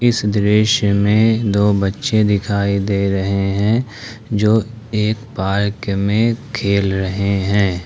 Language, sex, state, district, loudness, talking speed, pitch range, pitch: Hindi, male, Jharkhand, Ranchi, -17 LUFS, 120 wpm, 100-110 Hz, 105 Hz